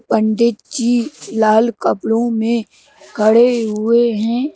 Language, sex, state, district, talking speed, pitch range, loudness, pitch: Hindi, male, Madhya Pradesh, Bhopal, 105 wpm, 220-240 Hz, -15 LUFS, 230 Hz